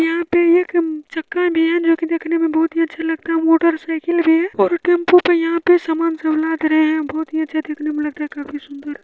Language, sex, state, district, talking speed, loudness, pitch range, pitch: Hindi, female, Bihar, Supaul, 240 wpm, -17 LUFS, 315-335 Hz, 325 Hz